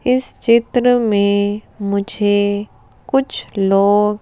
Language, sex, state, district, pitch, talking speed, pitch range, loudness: Hindi, female, Madhya Pradesh, Bhopal, 210 Hz, 85 wpm, 200-245 Hz, -16 LUFS